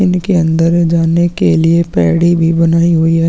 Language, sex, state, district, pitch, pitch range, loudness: Hindi, male, Maharashtra, Aurangabad, 165 Hz, 165-170 Hz, -11 LUFS